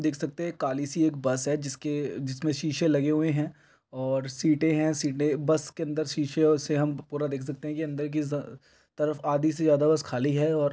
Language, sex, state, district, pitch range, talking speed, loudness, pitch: Maithili, male, Bihar, Araria, 145-155 Hz, 205 wpm, -27 LUFS, 150 Hz